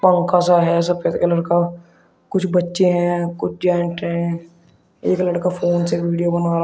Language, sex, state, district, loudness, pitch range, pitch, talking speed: Hindi, male, Uttar Pradesh, Shamli, -19 LUFS, 170-180 Hz, 175 Hz, 160 wpm